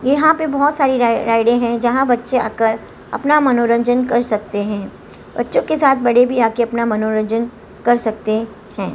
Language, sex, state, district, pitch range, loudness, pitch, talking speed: Hindi, female, Gujarat, Gandhinagar, 220-255 Hz, -16 LUFS, 235 Hz, 170 wpm